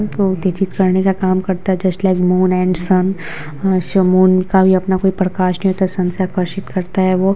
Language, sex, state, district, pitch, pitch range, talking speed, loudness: Hindi, female, Bihar, Vaishali, 185 Hz, 185-190 Hz, 210 wpm, -15 LUFS